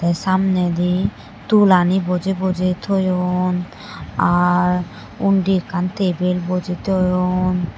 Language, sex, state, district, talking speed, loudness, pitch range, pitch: Chakma, female, Tripura, West Tripura, 100 wpm, -18 LUFS, 180-190 Hz, 180 Hz